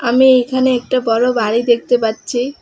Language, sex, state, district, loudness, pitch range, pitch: Bengali, female, West Bengal, Alipurduar, -14 LUFS, 235-255 Hz, 245 Hz